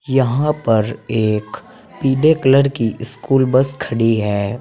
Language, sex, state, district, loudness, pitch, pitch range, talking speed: Hindi, male, Uttar Pradesh, Saharanpur, -16 LUFS, 130 Hz, 115-140 Hz, 130 wpm